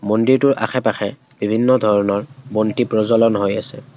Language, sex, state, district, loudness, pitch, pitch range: Assamese, male, Assam, Kamrup Metropolitan, -17 LUFS, 110 Hz, 105-130 Hz